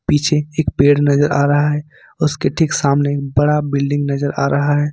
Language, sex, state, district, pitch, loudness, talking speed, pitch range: Hindi, male, Jharkhand, Ranchi, 145 Hz, -16 LUFS, 195 wpm, 140-150 Hz